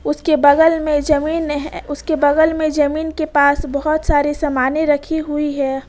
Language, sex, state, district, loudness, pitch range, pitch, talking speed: Hindi, female, Jharkhand, Ranchi, -16 LUFS, 290-315 Hz, 295 Hz, 175 wpm